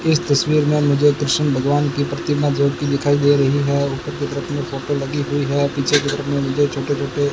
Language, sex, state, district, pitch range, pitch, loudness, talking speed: Hindi, male, Rajasthan, Bikaner, 140-145 Hz, 145 Hz, -18 LUFS, 235 wpm